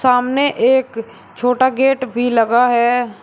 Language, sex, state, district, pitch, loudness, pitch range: Hindi, male, Uttar Pradesh, Shamli, 245 Hz, -15 LUFS, 235-260 Hz